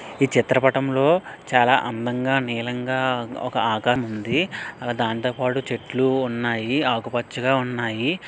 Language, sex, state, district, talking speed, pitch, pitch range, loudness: Telugu, male, Andhra Pradesh, Srikakulam, 95 wpm, 125 Hz, 120-130 Hz, -22 LUFS